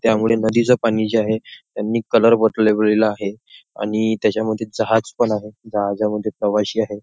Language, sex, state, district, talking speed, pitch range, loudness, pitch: Marathi, male, Maharashtra, Nagpur, 135 wpm, 105-110 Hz, -19 LUFS, 110 Hz